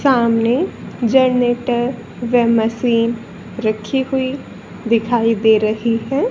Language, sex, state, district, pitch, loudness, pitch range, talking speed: Hindi, female, Haryana, Charkhi Dadri, 235 Hz, -17 LUFS, 225-250 Hz, 95 wpm